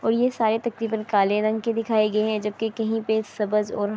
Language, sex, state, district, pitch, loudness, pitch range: Urdu, female, Andhra Pradesh, Anantapur, 220 Hz, -24 LUFS, 210-225 Hz